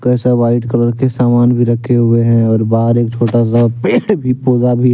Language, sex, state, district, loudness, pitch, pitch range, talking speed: Hindi, male, Jharkhand, Deoghar, -12 LUFS, 120 Hz, 115-125 Hz, 220 wpm